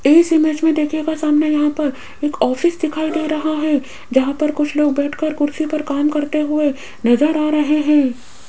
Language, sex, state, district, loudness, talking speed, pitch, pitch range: Hindi, female, Rajasthan, Jaipur, -17 LUFS, 200 wpm, 300 Hz, 290-310 Hz